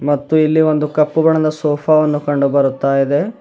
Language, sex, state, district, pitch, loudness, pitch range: Kannada, male, Karnataka, Bidar, 150 Hz, -15 LUFS, 145-155 Hz